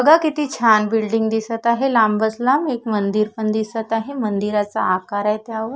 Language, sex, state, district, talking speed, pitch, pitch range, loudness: Marathi, female, Maharashtra, Nagpur, 175 wpm, 220 Hz, 215-235 Hz, -19 LUFS